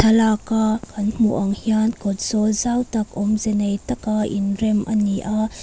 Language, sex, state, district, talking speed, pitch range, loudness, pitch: Mizo, female, Mizoram, Aizawl, 170 wpm, 205-220 Hz, -20 LUFS, 215 Hz